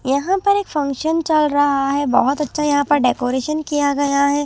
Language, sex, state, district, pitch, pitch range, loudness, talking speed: Hindi, female, Chhattisgarh, Raipur, 285 Hz, 275-305 Hz, -18 LUFS, 200 wpm